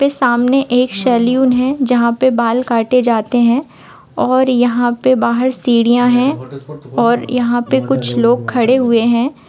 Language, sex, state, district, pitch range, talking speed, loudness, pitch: Bhojpuri, female, Bihar, Saran, 235-255 Hz, 160 wpm, -13 LUFS, 245 Hz